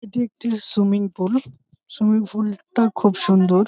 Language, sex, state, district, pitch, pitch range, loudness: Bengali, male, West Bengal, Jalpaiguri, 215 Hz, 200-230 Hz, -20 LUFS